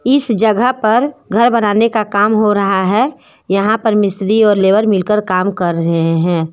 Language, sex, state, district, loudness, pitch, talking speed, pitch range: Hindi, female, Jharkhand, Deoghar, -13 LUFS, 210 Hz, 185 wpm, 195-225 Hz